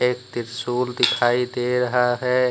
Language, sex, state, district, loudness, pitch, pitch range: Hindi, male, Jharkhand, Deoghar, -21 LUFS, 125 Hz, 120-125 Hz